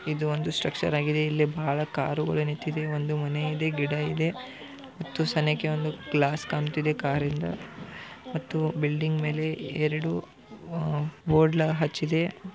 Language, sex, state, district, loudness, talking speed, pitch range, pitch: Kannada, male, Karnataka, Belgaum, -28 LUFS, 125 wpm, 150-160 Hz, 155 Hz